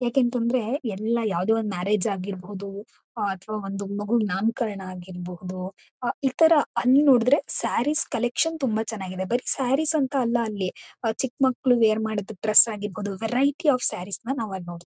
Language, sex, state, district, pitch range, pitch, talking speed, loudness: Kannada, female, Karnataka, Mysore, 200-255 Hz, 225 Hz, 140 wpm, -24 LUFS